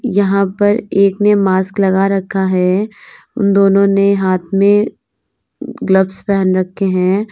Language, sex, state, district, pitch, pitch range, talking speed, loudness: Hindi, female, Uttar Pradesh, Lalitpur, 195 Hz, 190-200 Hz, 140 wpm, -13 LUFS